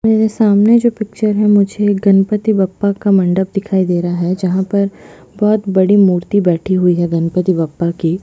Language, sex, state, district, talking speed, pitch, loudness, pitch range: Hindi, female, Chhattisgarh, Bastar, 180 wpm, 195 Hz, -14 LUFS, 180-210 Hz